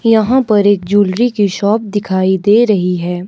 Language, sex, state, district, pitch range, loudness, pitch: Hindi, male, Himachal Pradesh, Shimla, 190-220 Hz, -12 LUFS, 205 Hz